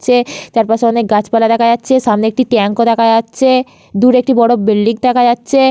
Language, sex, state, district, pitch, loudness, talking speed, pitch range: Bengali, female, West Bengal, Malda, 235 Hz, -12 LUFS, 180 wpm, 225-250 Hz